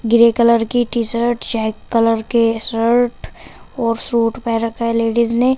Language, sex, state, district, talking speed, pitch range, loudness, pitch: Hindi, female, Uttar Pradesh, Shamli, 160 wpm, 230-235 Hz, -17 LUFS, 230 Hz